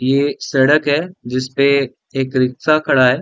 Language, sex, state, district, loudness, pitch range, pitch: Hindi, male, Bihar, Sitamarhi, -16 LUFS, 130-145 Hz, 135 Hz